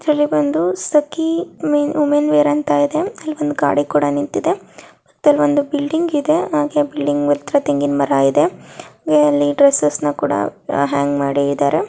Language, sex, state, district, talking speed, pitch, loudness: Kannada, female, Karnataka, Chamarajanagar, 145 wpm, 150 Hz, -17 LUFS